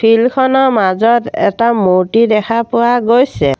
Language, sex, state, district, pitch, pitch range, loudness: Assamese, female, Assam, Sonitpur, 230 Hz, 210-240 Hz, -12 LUFS